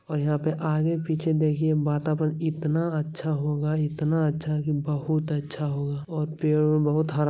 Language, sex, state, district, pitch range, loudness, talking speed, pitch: Hindi, male, Bihar, Jamui, 150-155 Hz, -26 LUFS, 180 wpm, 155 Hz